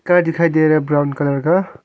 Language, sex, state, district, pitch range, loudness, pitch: Hindi, male, Arunachal Pradesh, Longding, 145-170 Hz, -16 LUFS, 155 Hz